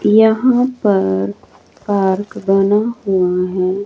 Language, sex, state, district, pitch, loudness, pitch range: Hindi, female, Chandigarh, Chandigarh, 195 Hz, -15 LUFS, 180-215 Hz